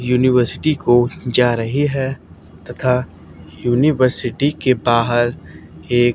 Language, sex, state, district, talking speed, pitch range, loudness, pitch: Hindi, male, Haryana, Charkhi Dadri, 95 wpm, 115-130 Hz, -17 LUFS, 120 Hz